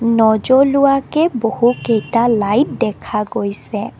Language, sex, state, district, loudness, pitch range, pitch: Assamese, female, Assam, Kamrup Metropolitan, -15 LUFS, 220-270 Hz, 235 Hz